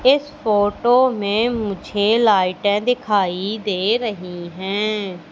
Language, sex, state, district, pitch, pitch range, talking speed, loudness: Hindi, female, Madhya Pradesh, Katni, 210 Hz, 195-230 Hz, 100 wpm, -19 LUFS